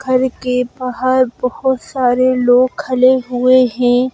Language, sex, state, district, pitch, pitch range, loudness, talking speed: Hindi, female, Madhya Pradesh, Bhopal, 255 Hz, 250-255 Hz, -14 LUFS, 130 wpm